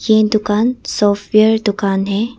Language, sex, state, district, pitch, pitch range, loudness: Hindi, female, Arunachal Pradesh, Papum Pare, 215 Hz, 205-220 Hz, -15 LUFS